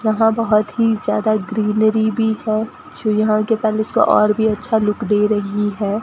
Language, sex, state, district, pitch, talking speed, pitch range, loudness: Hindi, female, Rajasthan, Bikaner, 215 Hz, 190 wpm, 210-220 Hz, -17 LUFS